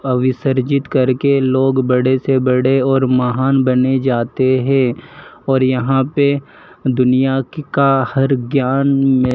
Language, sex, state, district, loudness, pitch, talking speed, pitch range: Hindi, male, Madhya Pradesh, Dhar, -15 LUFS, 130 Hz, 135 wpm, 130-135 Hz